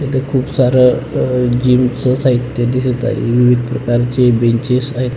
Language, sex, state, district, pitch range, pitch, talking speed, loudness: Marathi, male, Maharashtra, Pune, 120-130 Hz, 125 Hz, 140 wpm, -14 LUFS